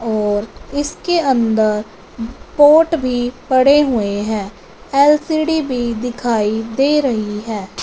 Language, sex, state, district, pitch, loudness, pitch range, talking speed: Hindi, female, Punjab, Fazilka, 245 Hz, -16 LUFS, 215-285 Hz, 105 wpm